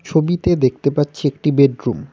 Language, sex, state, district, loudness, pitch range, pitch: Bengali, male, West Bengal, Cooch Behar, -17 LUFS, 135-160 Hz, 145 Hz